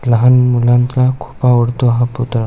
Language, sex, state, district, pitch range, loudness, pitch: Marathi, male, Maharashtra, Aurangabad, 120-125 Hz, -13 LUFS, 125 Hz